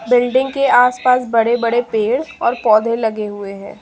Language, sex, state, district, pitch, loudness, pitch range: Hindi, female, Delhi, New Delhi, 235 Hz, -15 LUFS, 220-250 Hz